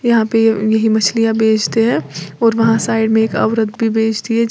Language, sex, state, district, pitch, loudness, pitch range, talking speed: Hindi, female, Uttar Pradesh, Lalitpur, 225 Hz, -14 LUFS, 220-225 Hz, 185 wpm